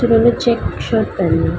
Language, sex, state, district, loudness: Hindi, female, Uttar Pradesh, Ghazipur, -16 LUFS